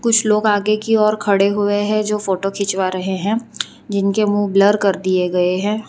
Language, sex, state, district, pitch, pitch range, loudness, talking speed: Hindi, female, Gujarat, Valsad, 205 Hz, 195-215 Hz, -17 LUFS, 205 wpm